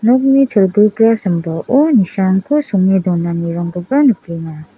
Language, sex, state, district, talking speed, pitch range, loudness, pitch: Garo, female, Meghalaya, South Garo Hills, 90 wpm, 170-245 Hz, -14 LUFS, 190 Hz